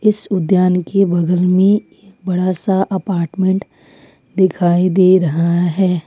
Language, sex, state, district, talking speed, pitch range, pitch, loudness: Hindi, female, Jharkhand, Ranchi, 120 wpm, 175-195 Hz, 185 Hz, -15 LUFS